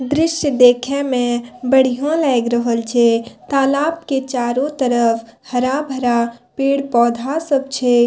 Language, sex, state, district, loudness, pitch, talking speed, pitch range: Maithili, female, Bihar, Madhepura, -17 LUFS, 255 Hz, 110 wpm, 240-275 Hz